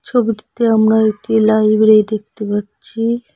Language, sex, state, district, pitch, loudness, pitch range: Bengali, female, West Bengal, Cooch Behar, 220 Hz, -14 LUFS, 215-225 Hz